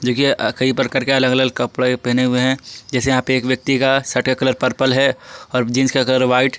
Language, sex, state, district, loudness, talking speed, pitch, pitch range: Hindi, male, Jharkhand, Palamu, -17 LUFS, 235 wpm, 130 Hz, 125-135 Hz